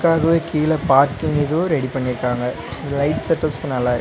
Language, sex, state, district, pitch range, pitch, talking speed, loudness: Tamil, male, Tamil Nadu, Nilgiris, 130-160 Hz, 145 Hz, 150 wpm, -19 LUFS